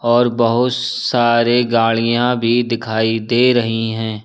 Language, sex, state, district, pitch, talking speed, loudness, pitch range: Hindi, male, Uttar Pradesh, Lucknow, 120 Hz, 125 wpm, -16 LUFS, 115-120 Hz